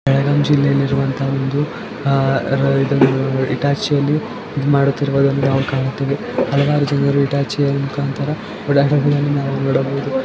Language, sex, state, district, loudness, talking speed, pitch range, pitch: Kannada, male, Karnataka, Belgaum, -17 LUFS, 115 wpm, 135-145 Hz, 140 Hz